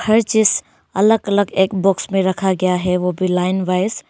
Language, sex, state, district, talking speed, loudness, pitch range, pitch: Hindi, female, Arunachal Pradesh, Longding, 220 wpm, -17 LUFS, 185-205 Hz, 190 Hz